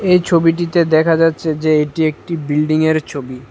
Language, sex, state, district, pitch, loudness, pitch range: Bengali, male, Tripura, West Tripura, 160 Hz, -15 LUFS, 155-165 Hz